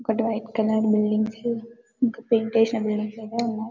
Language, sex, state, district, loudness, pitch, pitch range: Telugu, female, Telangana, Karimnagar, -24 LUFS, 225 Hz, 220-230 Hz